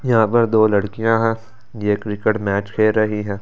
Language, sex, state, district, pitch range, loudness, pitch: Hindi, male, Delhi, New Delhi, 105-115 Hz, -18 LUFS, 110 Hz